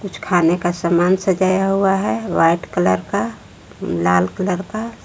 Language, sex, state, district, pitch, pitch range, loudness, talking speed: Hindi, female, Jharkhand, Palamu, 180 Hz, 165-190 Hz, -18 LUFS, 155 wpm